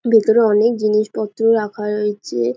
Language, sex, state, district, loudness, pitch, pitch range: Bengali, female, West Bengal, Paschim Medinipur, -17 LUFS, 215 Hz, 210-225 Hz